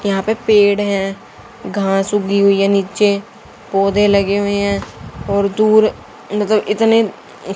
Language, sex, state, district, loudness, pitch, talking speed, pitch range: Hindi, female, Haryana, Jhajjar, -15 LUFS, 200 Hz, 135 wpm, 195-210 Hz